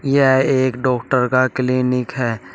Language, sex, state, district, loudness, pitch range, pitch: Hindi, male, Uttar Pradesh, Shamli, -17 LUFS, 125-130 Hz, 130 Hz